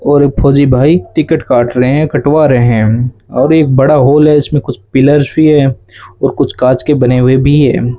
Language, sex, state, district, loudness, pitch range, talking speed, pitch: Hindi, male, Rajasthan, Bikaner, -9 LUFS, 125-150 Hz, 220 wpm, 140 Hz